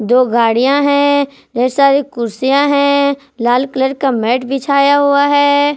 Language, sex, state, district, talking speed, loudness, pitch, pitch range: Hindi, female, Jharkhand, Palamu, 145 wpm, -13 LUFS, 275 Hz, 250-285 Hz